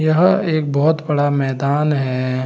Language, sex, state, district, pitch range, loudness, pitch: Hindi, male, Bihar, Saran, 135-155 Hz, -17 LUFS, 145 Hz